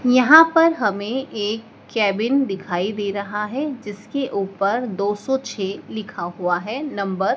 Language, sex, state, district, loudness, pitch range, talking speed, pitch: Hindi, female, Madhya Pradesh, Dhar, -20 LUFS, 200-260 Hz, 155 wpm, 210 Hz